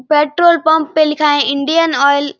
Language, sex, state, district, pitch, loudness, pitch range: Hindi, male, Bihar, Saharsa, 300 Hz, -12 LUFS, 285-320 Hz